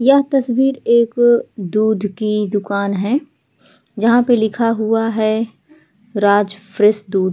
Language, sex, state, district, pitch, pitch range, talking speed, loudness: Hindi, female, Bihar, Vaishali, 220 Hz, 205-240 Hz, 140 wpm, -16 LUFS